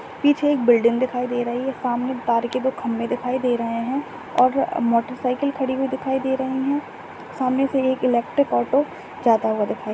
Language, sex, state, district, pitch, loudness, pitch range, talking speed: Hindi, male, Maharashtra, Nagpur, 255 Hz, -22 LUFS, 240-265 Hz, 200 wpm